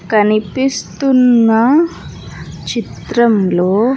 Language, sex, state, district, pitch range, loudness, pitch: Telugu, female, Andhra Pradesh, Sri Satya Sai, 215-260 Hz, -13 LUFS, 235 Hz